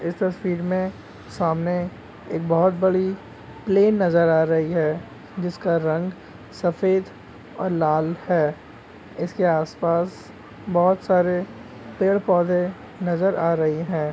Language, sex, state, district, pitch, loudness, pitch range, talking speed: Hindi, male, Jharkhand, Sahebganj, 175 Hz, -22 LUFS, 160-185 Hz, 125 wpm